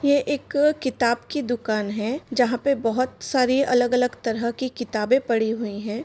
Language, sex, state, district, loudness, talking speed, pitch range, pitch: Hindi, female, Bihar, Madhepura, -23 LUFS, 170 wpm, 230-265 Hz, 245 Hz